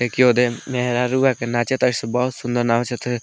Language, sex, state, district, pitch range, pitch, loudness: Bhojpuri, male, Bihar, Muzaffarpur, 120-125 Hz, 125 Hz, -20 LUFS